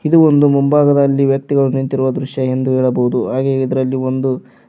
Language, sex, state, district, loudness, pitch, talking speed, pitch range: Kannada, male, Karnataka, Koppal, -15 LUFS, 135 Hz, 140 wpm, 130-140 Hz